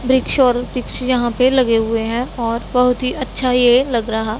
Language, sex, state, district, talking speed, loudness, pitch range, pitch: Hindi, female, Punjab, Pathankot, 205 wpm, -16 LUFS, 230-255 Hz, 245 Hz